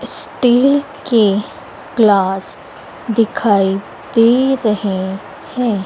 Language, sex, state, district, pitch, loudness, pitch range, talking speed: Hindi, female, Madhya Pradesh, Dhar, 225 Hz, -15 LUFS, 195-245 Hz, 70 wpm